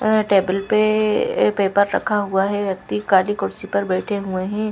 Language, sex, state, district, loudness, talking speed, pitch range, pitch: Hindi, female, Chhattisgarh, Raipur, -19 LUFS, 190 wpm, 195-215 Hz, 200 Hz